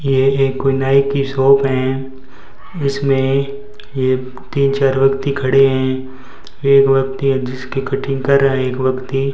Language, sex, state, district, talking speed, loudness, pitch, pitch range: Hindi, male, Rajasthan, Bikaner, 160 wpm, -16 LUFS, 135 Hz, 130-140 Hz